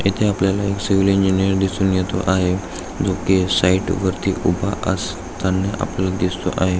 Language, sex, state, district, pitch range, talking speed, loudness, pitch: Marathi, male, Maharashtra, Aurangabad, 90-95 Hz, 150 wpm, -19 LUFS, 95 Hz